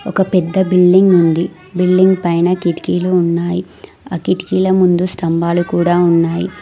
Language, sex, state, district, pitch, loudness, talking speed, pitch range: Telugu, female, Telangana, Mahabubabad, 180 Hz, -14 LUFS, 125 wpm, 170-185 Hz